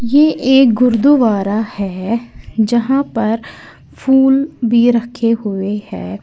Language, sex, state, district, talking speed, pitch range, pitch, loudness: Hindi, female, Uttar Pradesh, Lalitpur, 105 wpm, 215-265 Hz, 235 Hz, -14 LUFS